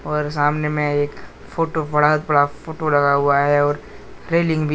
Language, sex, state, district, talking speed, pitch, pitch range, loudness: Hindi, male, Jharkhand, Deoghar, 190 wpm, 150 Hz, 145-155 Hz, -19 LUFS